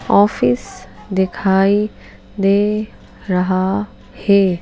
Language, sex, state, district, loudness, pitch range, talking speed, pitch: Hindi, female, Madhya Pradesh, Bhopal, -17 LUFS, 190-205 Hz, 65 wpm, 195 Hz